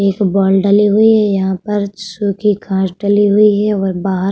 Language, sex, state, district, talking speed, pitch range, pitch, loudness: Hindi, female, Uttar Pradesh, Budaun, 210 wpm, 195-210 Hz, 200 Hz, -13 LUFS